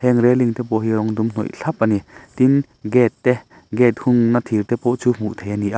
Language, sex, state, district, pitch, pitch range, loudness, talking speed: Mizo, male, Mizoram, Aizawl, 120 Hz, 110-125 Hz, -18 LUFS, 260 wpm